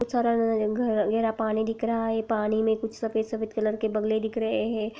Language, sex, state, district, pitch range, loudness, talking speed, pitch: Hindi, female, Uttar Pradesh, Jalaun, 220-225 Hz, -27 LUFS, 215 wpm, 220 Hz